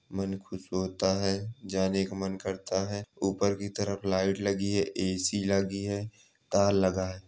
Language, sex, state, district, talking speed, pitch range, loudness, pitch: Hindi, male, West Bengal, Malda, 175 wpm, 95-100 Hz, -30 LUFS, 95 Hz